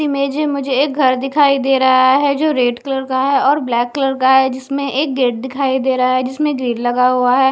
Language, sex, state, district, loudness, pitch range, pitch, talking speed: Hindi, female, Punjab, Kapurthala, -15 LUFS, 255-280 Hz, 265 Hz, 255 wpm